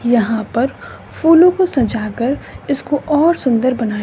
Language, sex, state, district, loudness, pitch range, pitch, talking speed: Hindi, female, Bihar, West Champaran, -15 LUFS, 230-300 Hz, 255 Hz, 150 wpm